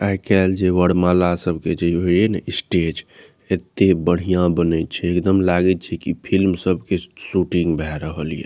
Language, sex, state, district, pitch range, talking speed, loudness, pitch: Maithili, male, Bihar, Saharsa, 85-95 Hz, 170 wpm, -19 LUFS, 90 Hz